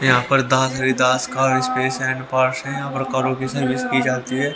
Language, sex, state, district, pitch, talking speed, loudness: Hindi, male, Haryana, Rohtak, 130 Hz, 105 wpm, -19 LUFS